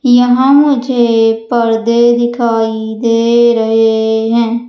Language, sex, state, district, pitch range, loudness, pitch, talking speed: Hindi, female, Madhya Pradesh, Umaria, 225-240 Hz, -11 LUFS, 235 Hz, 90 wpm